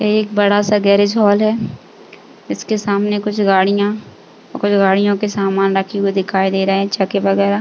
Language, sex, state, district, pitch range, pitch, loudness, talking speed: Hindi, female, Uttar Pradesh, Jalaun, 195-210 Hz, 200 Hz, -15 LUFS, 175 wpm